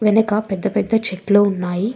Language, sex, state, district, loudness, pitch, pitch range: Telugu, female, Telangana, Hyderabad, -18 LUFS, 205 Hz, 195-215 Hz